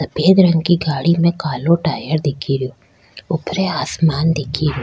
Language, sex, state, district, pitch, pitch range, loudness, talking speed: Rajasthani, female, Rajasthan, Churu, 155 Hz, 140-170 Hz, -17 LUFS, 160 wpm